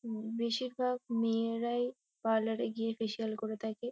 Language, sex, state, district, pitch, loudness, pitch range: Bengali, female, West Bengal, Kolkata, 225 Hz, -35 LUFS, 220-240 Hz